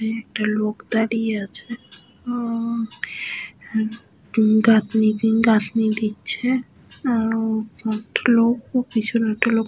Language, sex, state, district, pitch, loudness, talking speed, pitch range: Bengali, female, West Bengal, Paschim Medinipur, 225 Hz, -21 LUFS, 125 wpm, 215-230 Hz